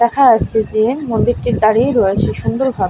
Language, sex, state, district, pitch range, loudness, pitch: Bengali, female, West Bengal, Paschim Medinipur, 220-265 Hz, -14 LUFS, 235 Hz